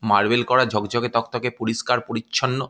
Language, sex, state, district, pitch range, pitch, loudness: Bengali, male, West Bengal, Malda, 115-125 Hz, 120 Hz, -21 LUFS